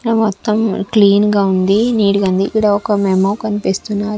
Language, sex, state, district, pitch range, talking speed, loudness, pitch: Telugu, female, Andhra Pradesh, Sri Satya Sai, 195-215 Hz, 160 wpm, -14 LUFS, 205 Hz